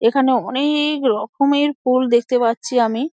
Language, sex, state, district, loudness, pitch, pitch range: Bengali, female, West Bengal, Dakshin Dinajpur, -18 LUFS, 255 Hz, 240-285 Hz